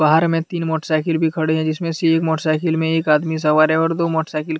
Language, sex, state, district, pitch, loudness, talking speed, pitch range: Hindi, male, Jharkhand, Deoghar, 160 Hz, -18 LUFS, 250 wpm, 155-165 Hz